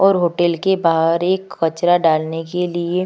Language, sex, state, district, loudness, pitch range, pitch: Hindi, female, Chhattisgarh, Kabirdham, -17 LUFS, 165-180 Hz, 175 Hz